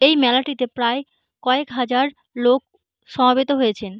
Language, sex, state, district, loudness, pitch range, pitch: Bengali, female, West Bengal, Jhargram, -19 LUFS, 245-280 Hz, 255 Hz